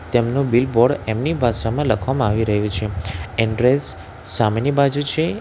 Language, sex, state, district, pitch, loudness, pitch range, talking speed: Gujarati, male, Gujarat, Valsad, 120 Hz, -19 LUFS, 105-140 Hz, 135 wpm